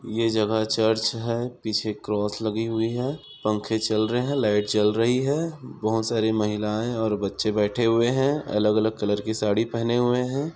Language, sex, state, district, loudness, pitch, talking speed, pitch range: Hindi, male, Chhattisgarh, Bilaspur, -24 LUFS, 110 Hz, 180 wpm, 105-120 Hz